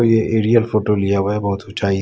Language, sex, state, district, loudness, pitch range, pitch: Hindi, male, Bihar, West Champaran, -17 LUFS, 100-110 Hz, 105 Hz